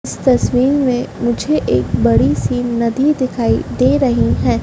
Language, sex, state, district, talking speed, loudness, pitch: Hindi, female, Madhya Pradesh, Dhar, 155 wpm, -15 LUFS, 245 Hz